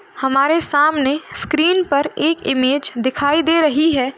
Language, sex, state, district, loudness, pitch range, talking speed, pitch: Hindi, female, Uttar Pradesh, Hamirpur, -16 LUFS, 270-320 Hz, 145 wpm, 295 Hz